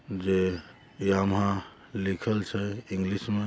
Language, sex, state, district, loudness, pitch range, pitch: Hindi, male, Jharkhand, Jamtara, -29 LUFS, 95-105 Hz, 100 Hz